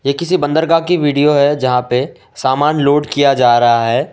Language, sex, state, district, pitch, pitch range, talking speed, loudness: Hindi, male, Assam, Sonitpur, 145 Hz, 125-150 Hz, 190 wpm, -13 LUFS